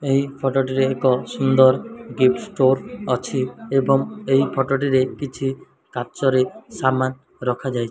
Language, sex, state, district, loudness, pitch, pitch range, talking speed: Odia, male, Odisha, Malkangiri, -20 LUFS, 135 Hz, 130-135 Hz, 115 wpm